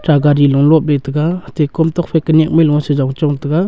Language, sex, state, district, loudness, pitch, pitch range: Wancho, male, Arunachal Pradesh, Longding, -13 LUFS, 150 Hz, 145-160 Hz